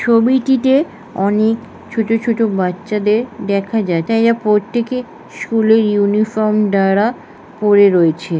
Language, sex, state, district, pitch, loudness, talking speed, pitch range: Bengali, female, West Bengal, Jhargram, 215 Hz, -15 LUFS, 120 wpm, 200-230 Hz